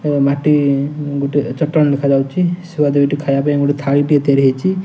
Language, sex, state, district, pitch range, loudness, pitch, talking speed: Odia, male, Odisha, Nuapada, 140-150 Hz, -15 LUFS, 145 Hz, 175 wpm